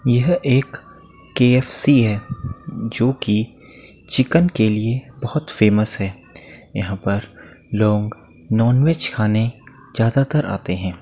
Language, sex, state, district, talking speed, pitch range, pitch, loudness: Hindi, male, Uttar Pradesh, Muzaffarnagar, 125 wpm, 105-130 Hz, 115 Hz, -19 LUFS